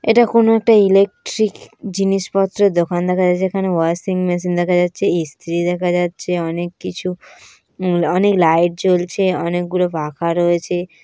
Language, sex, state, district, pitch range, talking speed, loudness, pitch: Bengali, male, West Bengal, Jhargram, 175-195 Hz, 125 wpm, -17 LUFS, 180 Hz